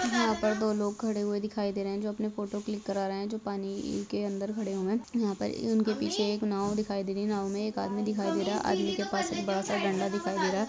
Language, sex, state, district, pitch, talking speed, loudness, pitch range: Hindi, female, Chhattisgarh, Bastar, 205 Hz, 295 wpm, -31 LUFS, 195-215 Hz